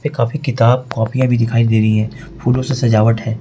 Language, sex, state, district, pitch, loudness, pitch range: Hindi, male, Jharkhand, Ranchi, 115 Hz, -15 LUFS, 115-130 Hz